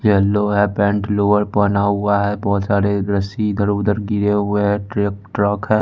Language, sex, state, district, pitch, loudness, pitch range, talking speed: Hindi, male, Bihar, West Champaran, 100 Hz, -18 LUFS, 100-105 Hz, 185 wpm